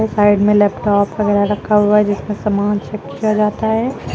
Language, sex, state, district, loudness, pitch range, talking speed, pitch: Hindi, female, Uttar Pradesh, Lucknow, -15 LUFS, 205-210 Hz, 190 wpm, 210 Hz